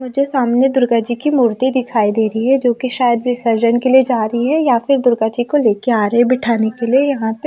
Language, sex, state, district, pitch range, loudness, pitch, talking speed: Hindi, female, Haryana, Rohtak, 230-260 Hz, -15 LUFS, 245 Hz, 265 wpm